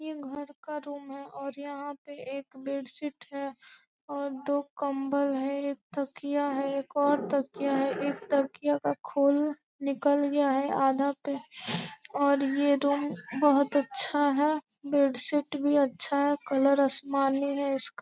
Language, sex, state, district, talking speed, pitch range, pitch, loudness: Hindi, female, Bihar, Gopalganj, 150 wpm, 275-285 Hz, 280 Hz, -29 LUFS